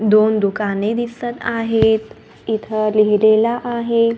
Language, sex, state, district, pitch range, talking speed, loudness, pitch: Marathi, female, Maharashtra, Gondia, 215-230 Hz, 100 wpm, -17 LUFS, 220 Hz